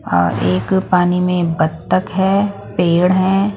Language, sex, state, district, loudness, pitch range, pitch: Hindi, female, Punjab, Pathankot, -16 LUFS, 165-190 Hz, 180 Hz